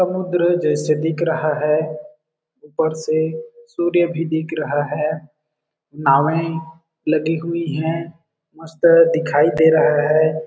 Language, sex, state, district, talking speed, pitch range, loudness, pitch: Hindi, male, Chhattisgarh, Balrampur, 115 wpm, 155-165 Hz, -18 LUFS, 160 Hz